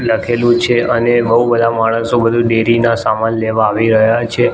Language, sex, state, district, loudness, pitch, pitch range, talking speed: Gujarati, male, Gujarat, Gandhinagar, -13 LUFS, 115 Hz, 115-120 Hz, 185 wpm